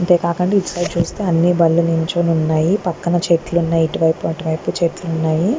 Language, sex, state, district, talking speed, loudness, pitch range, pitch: Telugu, female, Andhra Pradesh, Guntur, 170 wpm, -17 LUFS, 165-175 Hz, 170 Hz